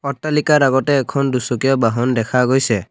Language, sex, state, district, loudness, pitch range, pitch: Assamese, male, Assam, Kamrup Metropolitan, -16 LUFS, 125-140 Hz, 130 Hz